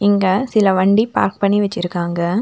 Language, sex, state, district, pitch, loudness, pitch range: Tamil, female, Tamil Nadu, Nilgiris, 200 Hz, -16 LUFS, 180-205 Hz